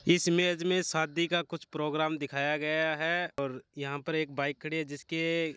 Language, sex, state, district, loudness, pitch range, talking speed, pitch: Hindi, male, Rajasthan, Churu, -31 LUFS, 145-170 Hz, 195 wpm, 160 Hz